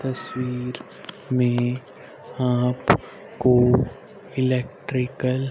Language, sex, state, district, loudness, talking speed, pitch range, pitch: Hindi, male, Haryana, Rohtak, -23 LUFS, 55 wpm, 125-130 Hz, 125 Hz